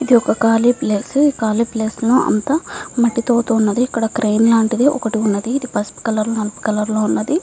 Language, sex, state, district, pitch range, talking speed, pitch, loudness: Telugu, female, Andhra Pradesh, Visakhapatnam, 215-245 Hz, 170 wpm, 230 Hz, -17 LUFS